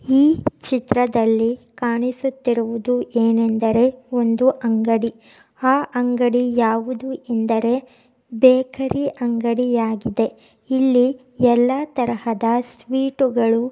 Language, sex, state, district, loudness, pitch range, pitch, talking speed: Kannada, female, Karnataka, Raichur, -19 LUFS, 230-260 Hz, 245 Hz, 75 wpm